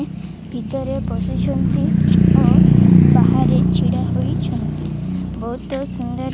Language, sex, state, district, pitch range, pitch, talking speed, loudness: Odia, female, Odisha, Malkangiri, 130-180 Hz, 175 Hz, 85 wpm, -17 LUFS